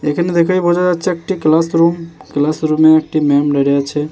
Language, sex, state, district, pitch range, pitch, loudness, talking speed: Bengali, male, West Bengal, Jalpaiguri, 150-170 Hz, 155 Hz, -14 LUFS, 190 wpm